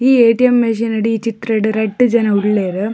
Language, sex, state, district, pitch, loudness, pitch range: Tulu, female, Karnataka, Dakshina Kannada, 225 Hz, -14 LUFS, 215-235 Hz